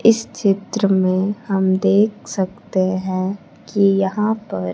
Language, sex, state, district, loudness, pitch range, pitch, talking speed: Hindi, female, Bihar, Kaimur, -19 LUFS, 190-210 Hz, 195 Hz, 125 wpm